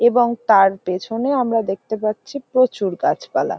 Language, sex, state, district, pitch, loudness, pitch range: Bengali, female, West Bengal, North 24 Parganas, 225 Hz, -19 LUFS, 195-245 Hz